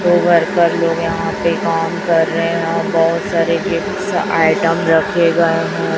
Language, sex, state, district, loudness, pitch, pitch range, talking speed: Hindi, female, Chhattisgarh, Raipur, -15 LUFS, 170 Hz, 165-175 Hz, 170 wpm